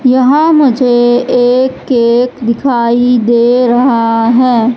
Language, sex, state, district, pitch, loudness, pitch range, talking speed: Hindi, female, Madhya Pradesh, Katni, 245 Hz, -9 LUFS, 235-255 Hz, 100 wpm